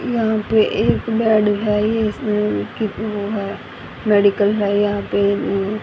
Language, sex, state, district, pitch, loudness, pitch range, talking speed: Hindi, female, Haryana, Rohtak, 210 Hz, -18 LUFS, 205-215 Hz, 165 wpm